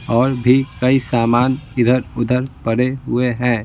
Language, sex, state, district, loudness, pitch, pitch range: Hindi, male, Bihar, Patna, -17 LUFS, 125 Hz, 120-130 Hz